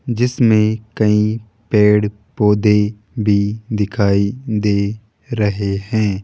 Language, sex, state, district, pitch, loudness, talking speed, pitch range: Hindi, male, Rajasthan, Jaipur, 105 Hz, -17 LUFS, 85 wpm, 105-110 Hz